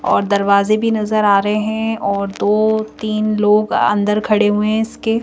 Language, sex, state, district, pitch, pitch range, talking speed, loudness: Hindi, female, Madhya Pradesh, Bhopal, 215 Hz, 205-220 Hz, 170 wpm, -16 LUFS